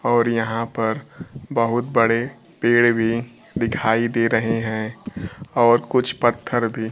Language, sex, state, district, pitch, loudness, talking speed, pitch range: Hindi, male, Bihar, Kaimur, 115 Hz, -20 LUFS, 130 wpm, 115-120 Hz